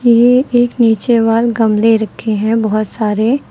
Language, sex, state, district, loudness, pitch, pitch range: Hindi, female, Uttar Pradesh, Lucknow, -13 LUFS, 225 Hz, 215-240 Hz